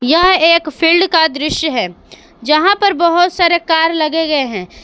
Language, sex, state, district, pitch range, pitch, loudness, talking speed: Hindi, female, Jharkhand, Palamu, 305-345 Hz, 325 Hz, -12 LUFS, 175 wpm